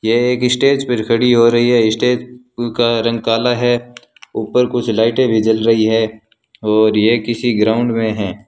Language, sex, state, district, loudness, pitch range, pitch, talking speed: Hindi, male, Rajasthan, Bikaner, -15 LUFS, 110-120 Hz, 115 Hz, 185 wpm